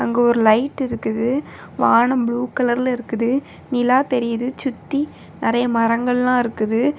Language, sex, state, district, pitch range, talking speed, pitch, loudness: Tamil, female, Tamil Nadu, Kanyakumari, 235-255 Hz, 120 wpm, 245 Hz, -19 LUFS